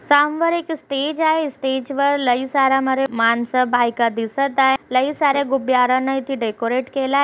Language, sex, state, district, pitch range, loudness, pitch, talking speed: Marathi, female, Maharashtra, Chandrapur, 255-280 Hz, -19 LUFS, 270 Hz, 135 wpm